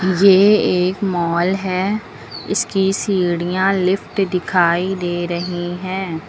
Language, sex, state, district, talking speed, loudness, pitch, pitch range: Hindi, female, Uttar Pradesh, Lucknow, 105 wpm, -17 LUFS, 185 Hz, 175-195 Hz